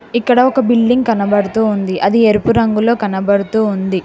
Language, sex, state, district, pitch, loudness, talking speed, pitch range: Telugu, female, Telangana, Hyderabad, 220 Hz, -13 LUFS, 135 wpm, 200-235 Hz